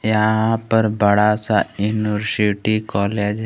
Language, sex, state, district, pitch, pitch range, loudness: Hindi, male, Jharkhand, Garhwa, 105 Hz, 105-110 Hz, -18 LUFS